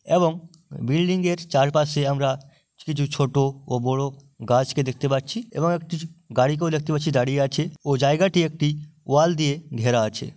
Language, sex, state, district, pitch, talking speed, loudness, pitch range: Bengali, male, West Bengal, Dakshin Dinajpur, 150 Hz, 180 wpm, -23 LUFS, 135-165 Hz